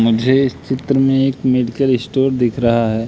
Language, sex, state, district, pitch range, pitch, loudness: Hindi, male, Madhya Pradesh, Katni, 115-135 Hz, 130 Hz, -16 LUFS